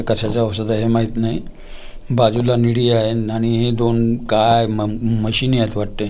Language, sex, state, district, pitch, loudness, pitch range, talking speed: Marathi, male, Maharashtra, Gondia, 115 Hz, -17 LUFS, 110-115 Hz, 175 wpm